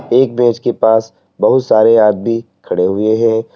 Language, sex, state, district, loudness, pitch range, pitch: Hindi, male, Uttar Pradesh, Lalitpur, -13 LUFS, 110-115 Hz, 110 Hz